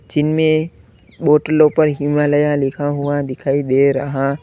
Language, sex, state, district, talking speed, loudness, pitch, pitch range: Hindi, male, Uttar Pradesh, Lalitpur, 120 wpm, -16 LUFS, 145 Hz, 135-150 Hz